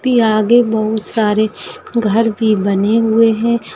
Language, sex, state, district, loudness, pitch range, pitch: Hindi, female, Maharashtra, Pune, -14 LUFS, 215-230 Hz, 220 Hz